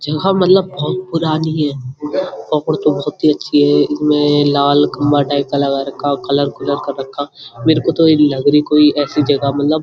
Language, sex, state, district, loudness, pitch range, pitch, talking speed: Hindi, male, Uttarakhand, Uttarkashi, -15 LUFS, 140-155 Hz, 145 Hz, 185 wpm